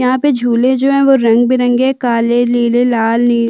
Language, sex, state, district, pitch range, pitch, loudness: Hindi, female, Chhattisgarh, Sukma, 235-260 Hz, 245 Hz, -12 LUFS